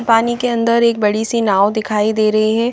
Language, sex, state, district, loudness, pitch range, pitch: Hindi, female, Haryana, Charkhi Dadri, -15 LUFS, 215-235 Hz, 220 Hz